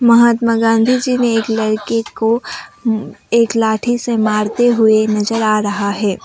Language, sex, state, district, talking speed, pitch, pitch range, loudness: Hindi, female, Assam, Kamrup Metropolitan, 155 wpm, 225 Hz, 215-235 Hz, -15 LUFS